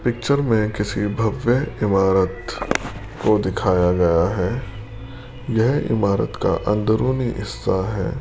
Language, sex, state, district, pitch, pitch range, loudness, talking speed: Hindi, male, Rajasthan, Jaipur, 110 Hz, 95-120 Hz, -20 LUFS, 110 wpm